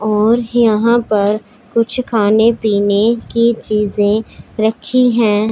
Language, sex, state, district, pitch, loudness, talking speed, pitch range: Hindi, female, Punjab, Pathankot, 220 Hz, -14 LUFS, 110 wpm, 210-235 Hz